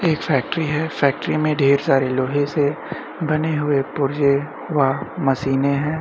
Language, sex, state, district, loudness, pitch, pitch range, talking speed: Hindi, male, Uttar Pradesh, Jyotiba Phule Nagar, -20 LUFS, 145 Hz, 140-155 Hz, 150 wpm